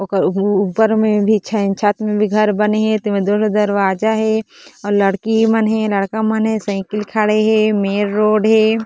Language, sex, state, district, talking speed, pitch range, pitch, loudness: Chhattisgarhi, female, Chhattisgarh, Korba, 170 wpm, 205-220 Hz, 215 Hz, -16 LUFS